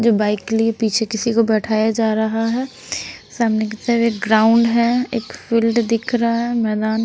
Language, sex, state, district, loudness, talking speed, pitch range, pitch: Hindi, female, Bihar, West Champaran, -18 LUFS, 195 wpm, 220-235 Hz, 225 Hz